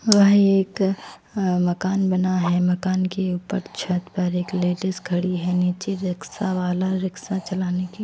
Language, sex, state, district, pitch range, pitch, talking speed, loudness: Hindi, female, Himachal Pradesh, Shimla, 180-195 Hz, 185 Hz, 155 wpm, -22 LUFS